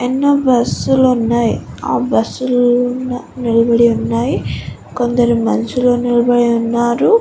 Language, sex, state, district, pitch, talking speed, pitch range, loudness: Telugu, female, Andhra Pradesh, Guntur, 240 Hz, 110 wpm, 235-250 Hz, -14 LUFS